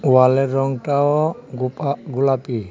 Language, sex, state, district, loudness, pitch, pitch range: Bengali, male, Tripura, West Tripura, -19 LUFS, 135 Hz, 130-140 Hz